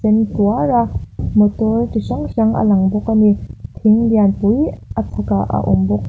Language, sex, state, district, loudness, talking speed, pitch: Mizo, female, Mizoram, Aizawl, -16 LUFS, 175 wpm, 210 Hz